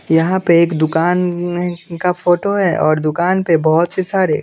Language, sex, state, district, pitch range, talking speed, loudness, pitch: Hindi, male, Bihar, West Champaran, 165-180 Hz, 175 wpm, -15 LUFS, 175 Hz